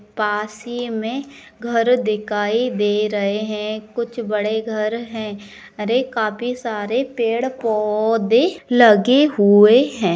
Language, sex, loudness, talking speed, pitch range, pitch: Maithili, female, -18 LUFS, 120 wpm, 210-240 Hz, 220 Hz